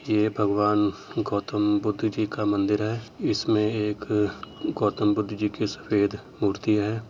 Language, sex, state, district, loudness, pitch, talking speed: Hindi, male, Uttar Pradesh, Etah, -25 LUFS, 105 Hz, 145 wpm